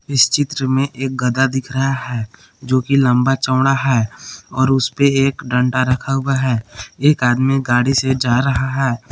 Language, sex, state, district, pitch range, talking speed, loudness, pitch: Hindi, male, Jharkhand, Palamu, 125-135 Hz, 175 wpm, -16 LUFS, 130 Hz